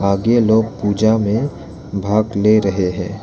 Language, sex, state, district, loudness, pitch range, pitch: Hindi, male, Arunachal Pradesh, Lower Dibang Valley, -16 LUFS, 100-110 Hz, 105 Hz